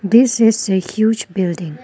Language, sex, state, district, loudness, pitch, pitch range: English, female, Arunachal Pradesh, Lower Dibang Valley, -16 LUFS, 210 Hz, 185-225 Hz